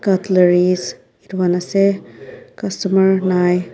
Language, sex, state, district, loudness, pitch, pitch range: Nagamese, female, Nagaland, Dimapur, -16 LUFS, 185 Hz, 180-195 Hz